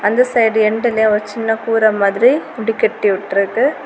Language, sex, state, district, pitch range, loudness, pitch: Tamil, female, Tamil Nadu, Kanyakumari, 210-225 Hz, -15 LUFS, 220 Hz